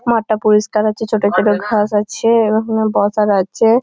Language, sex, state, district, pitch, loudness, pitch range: Bengali, female, West Bengal, Malda, 215 Hz, -15 LUFS, 210-220 Hz